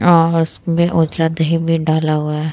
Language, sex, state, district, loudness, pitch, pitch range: Hindi, female, Bihar, Vaishali, -16 LUFS, 165 Hz, 155-165 Hz